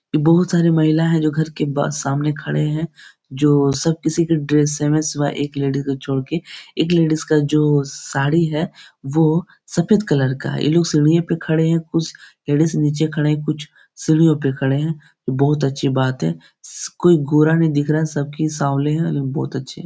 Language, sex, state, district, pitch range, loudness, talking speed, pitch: Hindi, male, Bihar, Supaul, 145-160 Hz, -18 LUFS, 210 wpm, 150 Hz